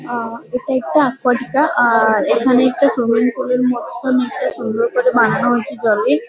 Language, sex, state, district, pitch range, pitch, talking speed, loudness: Bengali, female, West Bengal, Kolkata, 235-265 Hz, 250 Hz, 160 wpm, -16 LUFS